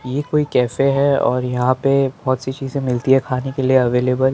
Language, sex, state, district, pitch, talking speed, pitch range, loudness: Hindi, male, Maharashtra, Mumbai Suburban, 130 Hz, 235 wpm, 125-135 Hz, -18 LUFS